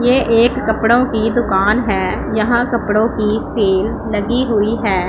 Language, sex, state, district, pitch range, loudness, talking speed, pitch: Hindi, female, Punjab, Pathankot, 210-240 Hz, -15 LUFS, 155 wpm, 225 Hz